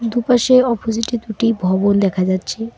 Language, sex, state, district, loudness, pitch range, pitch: Bengali, female, West Bengal, Alipurduar, -16 LUFS, 200-235 Hz, 225 Hz